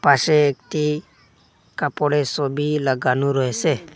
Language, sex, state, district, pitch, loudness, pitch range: Bengali, male, Assam, Hailakandi, 145 Hz, -20 LUFS, 135-150 Hz